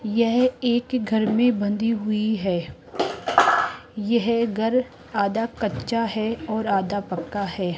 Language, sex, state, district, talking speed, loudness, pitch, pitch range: Hindi, female, Rajasthan, Jaipur, 125 wpm, -23 LUFS, 220 Hz, 205-235 Hz